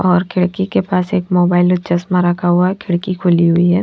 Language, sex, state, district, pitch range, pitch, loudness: Hindi, female, Haryana, Jhajjar, 175-185 Hz, 180 Hz, -15 LUFS